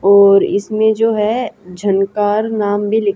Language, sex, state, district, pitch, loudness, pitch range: Hindi, female, Haryana, Rohtak, 205 Hz, -14 LUFS, 200-220 Hz